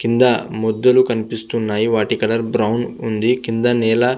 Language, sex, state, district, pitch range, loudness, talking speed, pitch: Telugu, male, Andhra Pradesh, Visakhapatnam, 110-120 Hz, -17 LUFS, 145 wpm, 115 Hz